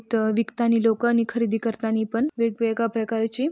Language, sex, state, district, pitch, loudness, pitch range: Marathi, female, Maharashtra, Sindhudurg, 230 Hz, -23 LUFS, 225-230 Hz